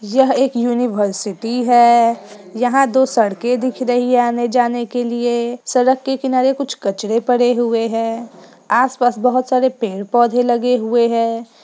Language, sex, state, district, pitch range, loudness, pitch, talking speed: Hindi, female, Bihar, Sitamarhi, 230-250 Hz, -16 LUFS, 240 Hz, 150 wpm